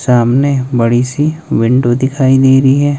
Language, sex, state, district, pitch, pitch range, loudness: Hindi, male, Himachal Pradesh, Shimla, 130 Hz, 125-140 Hz, -11 LUFS